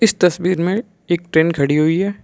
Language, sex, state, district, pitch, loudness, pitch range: Hindi, male, Arunachal Pradesh, Lower Dibang Valley, 180 Hz, -17 LUFS, 160-195 Hz